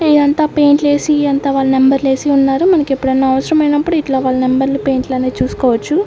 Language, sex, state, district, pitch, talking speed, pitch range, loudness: Telugu, female, Andhra Pradesh, Sri Satya Sai, 275 Hz, 240 wpm, 265-295 Hz, -13 LUFS